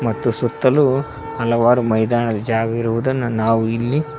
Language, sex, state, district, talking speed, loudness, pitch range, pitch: Kannada, male, Karnataka, Koppal, 115 wpm, -18 LUFS, 115-125 Hz, 115 Hz